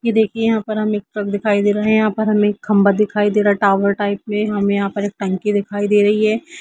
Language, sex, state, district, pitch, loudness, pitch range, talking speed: Hindi, female, Jharkhand, Jamtara, 210 Hz, -17 LUFS, 205-215 Hz, 290 wpm